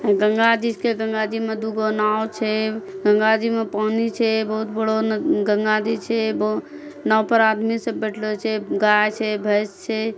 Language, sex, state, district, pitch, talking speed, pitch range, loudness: Angika, female, Bihar, Bhagalpur, 220 Hz, 185 wpm, 215-225 Hz, -21 LUFS